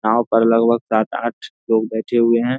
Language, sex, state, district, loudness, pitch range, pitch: Hindi, male, Bihar, Darbhanga, -17 LUFS, 110-120 Hz, 115 Hz